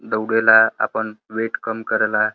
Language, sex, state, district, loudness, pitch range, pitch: Bhojpuri, male, Uttar Pradesh, Deoria, -18 LUFS, 110-115 Hz, 110 Hz